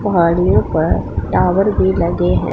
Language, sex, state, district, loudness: Hindi, female, Punjab, Pathankot, -15 LUFS